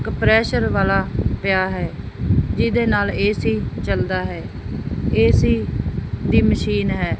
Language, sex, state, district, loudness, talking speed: Punjabi, female, Punjab, Fazilka, -19 LUFS, 110 wpm